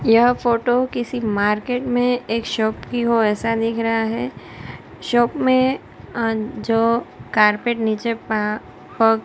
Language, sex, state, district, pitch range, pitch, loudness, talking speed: Hindi, female, Gujarat, Gandhinagar, 215-240 Hz, 225 Hz, -20 LUFS, 135 wpm